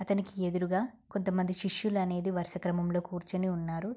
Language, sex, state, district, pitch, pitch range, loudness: Telugu, female, Andhra Pradesh, Guntur, 185 Hz, 180-200 Hz, -33 LUFS